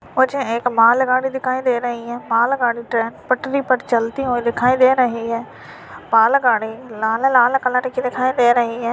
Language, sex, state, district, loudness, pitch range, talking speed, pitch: Hindi, male, Uttarakhand, Uttarkashi, -17 LUFS, 235-255 Hz, 170 wpm, 245 Hz